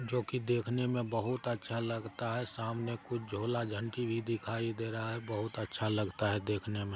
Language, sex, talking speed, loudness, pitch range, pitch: Maithili, male, 215 wpm, -36 LUFS, 110-120 Hz, 115 Hz